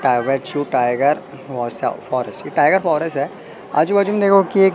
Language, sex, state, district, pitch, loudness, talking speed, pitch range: Hindi, male, Madhya Pradesh, Katni, 145 Hz, -18 LUFS, 190 wpm, 130-195 Hz